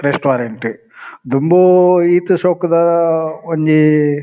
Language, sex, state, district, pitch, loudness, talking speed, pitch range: Tulu, male, Karnataka, Dakshina Kannada, 160 Hz, -13 LUFS, 70 wpm, 145-175 Hz